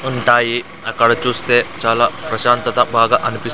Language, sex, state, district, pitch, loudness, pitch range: Telugu, male, Andhra Pradesh, Sri Satya Sai, 120 Hz, -15 LUFS, 115-125 Hz